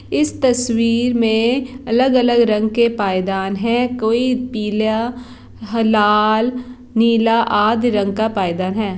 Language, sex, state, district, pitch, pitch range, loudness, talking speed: Hindi, female, Bihar, Jahanabad, 230 Hz, 215-245 Hz, -17 LUFS, 125 wpm